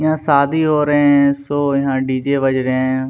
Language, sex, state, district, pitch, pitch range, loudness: Hindi, male, Chhattisgarh, Kabirdham, 140 Hz, 130-145 Hz, -15 LUFS